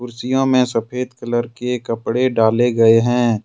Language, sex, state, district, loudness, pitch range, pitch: Hindi, male, Jharkhand, Ranchi, -17 LUFS, 115-125 Hz, 120 Hz